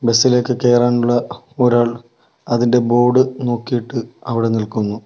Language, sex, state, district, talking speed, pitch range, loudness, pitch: Malayalam, male, Kerala, Kollam, 105 wpm, 115-125 Hz, -16 LUFS, 120 Hz